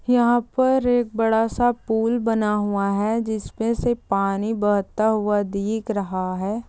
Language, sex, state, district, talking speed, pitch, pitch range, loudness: Hindi, female, Chhattisgarh, Balrampur, 150 wpm, 220 Hz, 205-235 Hz, -22 LUFS